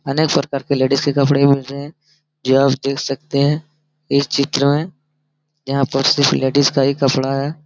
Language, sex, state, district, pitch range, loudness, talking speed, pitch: Hindi, male, Bihar, Araria, 135-150 Hz, -17 LUFS, 195 wpm, 140 Hz